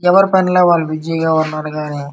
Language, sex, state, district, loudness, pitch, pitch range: Telugu, male, Andhra Pradesh, Srikakulam, -15 LUFS, 160 Hz, 155-180 Hz